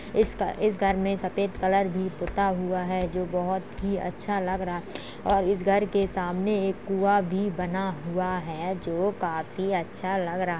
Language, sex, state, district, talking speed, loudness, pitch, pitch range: Hindi, male, Uttar Pradesh, Jalaun, 190 wpm, -27 LUFS, 190 Hz, 180-195 Hz